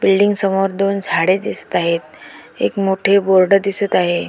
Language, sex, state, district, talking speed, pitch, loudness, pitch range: Marathi, female, Maharashtra, Dhule, 155 wpm, 195 Hz, -16 LUFS, 185-195 Hz